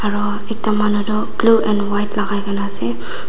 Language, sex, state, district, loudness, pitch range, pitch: Nagamese, female, Nagaland, Dimapur, -18 LUFS, 205-215 Hz, 205 Hz